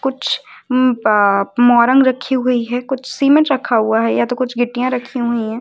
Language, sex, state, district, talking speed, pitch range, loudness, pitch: Hindi, female, Uttar Pradesh, Lucknow, 190 wpm, 235-260 Hz, -15 LUFS, 250 Hz